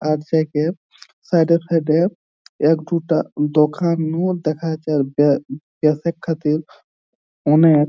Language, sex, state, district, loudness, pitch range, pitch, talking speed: Bengali, male, West Bengal, Jhargram, -19 LUFS, 150-165 Hz, 155 Hz, 100 wpm